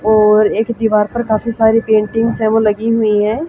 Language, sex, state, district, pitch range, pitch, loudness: Hindi, female, Haryana, Jhajjar, 215-225 Hz, 220 Hz, -13 LUFS